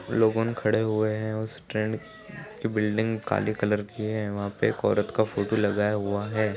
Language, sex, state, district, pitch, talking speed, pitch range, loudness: Hindi, male, Bihar, Purnia, 110 Hz, 190 wpm, 105-110 Hz, -27 LUFS